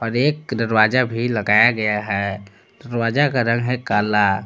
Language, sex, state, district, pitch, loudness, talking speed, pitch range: Hindi, male, Jharkhand, Palamu, 115 Hz, -19 LUFS, 175 wpm, 105-120 Hz